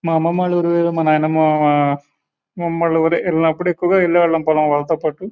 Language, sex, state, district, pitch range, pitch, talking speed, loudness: Telugu, male, Andhra Pradesh, Guntur, 155-175 Hz, 165 Hz, 190 wpm, -16 LUFS